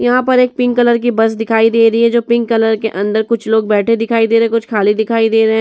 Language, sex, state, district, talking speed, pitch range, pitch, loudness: Hindi, female, Uttar Pradesh, Etah, 310 wpm, 220-235 Hz, 225 Hz, -13 LUFS